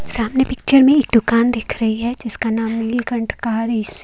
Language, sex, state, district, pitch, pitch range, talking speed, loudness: Hindi, female, Haryana, Jhajjar, 230 Hz, 225-245 Hz, 205 wpm, -17 LUFS